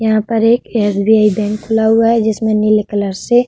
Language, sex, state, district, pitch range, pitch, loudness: Hindi, female, Uttar Pradesh, Budaun, 210-225 Hz, 220 Hz, -13 LUFS